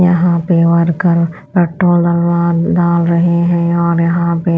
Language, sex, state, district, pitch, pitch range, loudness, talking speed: Hindi, female, Chhattisgarh, Raipur, 170 Hz, 170-175 Hz, -12 LUFS, 130 wpm